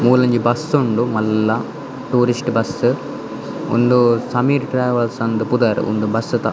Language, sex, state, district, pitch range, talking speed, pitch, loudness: Tulu, male, Karnataka, Dakshina Kannada, 110-125 Hz, 130 wpm, 120 Hz, -17 LUFS